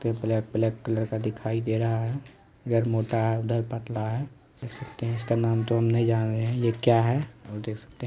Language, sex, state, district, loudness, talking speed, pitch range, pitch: Hindi, male, Bihar, Araria, -27 LUFS, 200 wpm, 110-115 Hz, 115 Hz